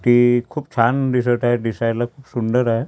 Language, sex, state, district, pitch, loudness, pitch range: Marathi, male, Maharashtra, Gondia, 120 Hz, -19 LUFS, 115-125 Hz